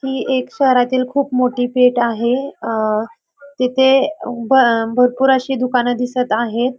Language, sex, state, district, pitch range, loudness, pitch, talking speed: Marathi, female, Maharashtra, Pune, 245-265 Hz, -16 LUFS, 255 Hz, 135 wpm